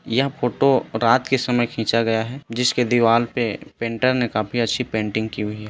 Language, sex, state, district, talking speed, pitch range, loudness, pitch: Hindi, male, Chhattisgarh, Korba, 200 wpm, 110-125 Hz, -21 LUFS, 115 Hz